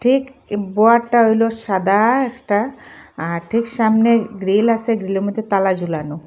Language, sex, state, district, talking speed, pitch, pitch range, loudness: Bengali, female, Assam, Hailakandi, 145 wpm, 220 Hz, 195-230 Hz, -17 LUFS